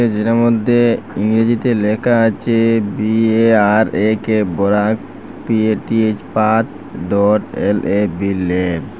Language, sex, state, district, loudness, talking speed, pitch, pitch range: Bengali, male, Assam, Hailakandi, -15 LUFS, 85 wpm, 110 Hz, 105-115 Hz